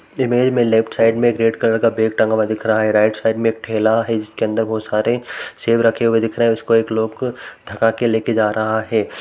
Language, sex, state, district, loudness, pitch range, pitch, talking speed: Hindi, male, Uttar Pradesh, Jalaun, -17 LUFS, 110-115 Hz, 115 Hz, 260 wpm